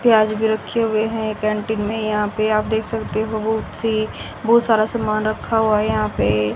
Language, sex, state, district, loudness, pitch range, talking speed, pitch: Hindi, female, Haryana, Rohtak, -20 LUFS, 215-220 Hz, 210 wpm, 215 Hz